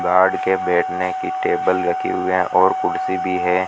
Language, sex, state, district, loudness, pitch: Hindi, male, Rajasthan, Bikaner, -19 LUFS, 95 Hz